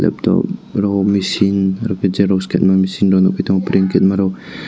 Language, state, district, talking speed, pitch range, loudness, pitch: Kokborok, Tripura, West Tripura, 140 wpm, 95-100 Hz, -15 LUFS, 95 Hz